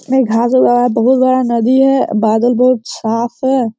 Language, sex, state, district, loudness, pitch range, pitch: Hindi, male, Bihar, Sitamarhi, -12 LUFS, 230-260 Hz, 245 Hz